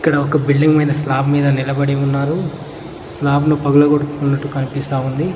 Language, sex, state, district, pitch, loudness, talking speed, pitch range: Telugu, male, Telangana, Mahabubabad, 145 Hz, -16 LUFS, 145 wpm, 140-150 Hz